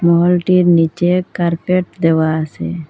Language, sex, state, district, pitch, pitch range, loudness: Bengali, female, Assam, Hailakandi, 170 Hz, 160-180 Hz, -15 LUFS